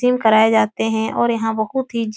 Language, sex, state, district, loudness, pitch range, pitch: Hindi, female, Uttar Pradesh, Etah, -17 LUFS, 220-235 Hz, 225 Hz